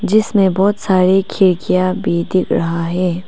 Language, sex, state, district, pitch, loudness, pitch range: Hindi, female, Arunachal Pradesh, Papum Pare, 185 Hz, -15 LUFS, 180-200 Hz